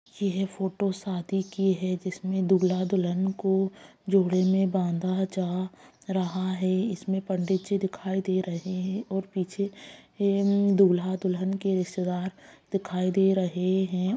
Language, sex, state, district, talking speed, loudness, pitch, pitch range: Hindi, female, Bihar, Purnia, 125 wpm, -27 LUFS, 190 Hz, 185-195 Hz